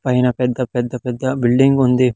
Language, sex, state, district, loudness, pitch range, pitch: Telugu, male, Andhra Pradesh, Sri Satya Sai, -17 LUFS, 125-130 Hz, 125 Hz